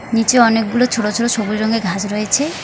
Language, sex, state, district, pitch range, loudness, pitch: Bengali, female, West Bengal, Alipurduar, 210-235 Hz, -16 LUFS, 225 Hz